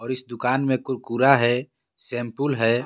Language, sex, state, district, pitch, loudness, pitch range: Hindi, male, Jharkhand, Garhwa, 125 Hz, -23 LUFS, 120-135 Hz